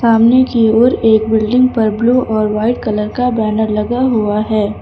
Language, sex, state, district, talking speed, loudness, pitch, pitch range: Hindi, female, Uttar Pradesh, Lucknow, 185 wpm, -13 LUFS, 220 Hz, 215-245 Hz